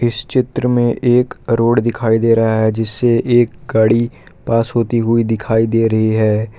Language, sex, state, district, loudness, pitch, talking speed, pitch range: Hindi, male, Jharkhand, Palamu, -15 LUFS, 115 Hz, 175 wpm, 110-120 Hz